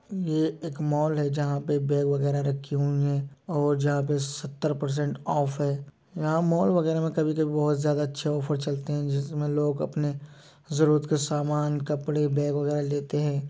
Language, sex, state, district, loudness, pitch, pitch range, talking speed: Hindi, male, Uttar Pradesh, Jyotiba Phule Nagar, -27 LUFS, 145 Hz, 145-150 Hz, 180 wpm